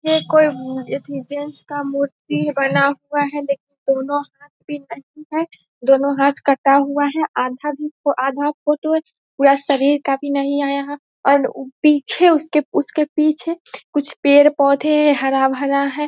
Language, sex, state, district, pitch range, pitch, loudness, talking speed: Hindi, female, Bihar, Vaishali, 275-300 Hz, 285 Hz, -18 LUFS, 145 wpm